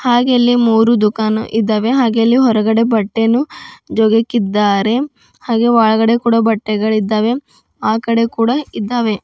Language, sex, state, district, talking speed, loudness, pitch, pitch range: Kannada, female, Karnataka, Bidar, 110 wpm, -14 LUFS, 225 Hz, 220-240 Hz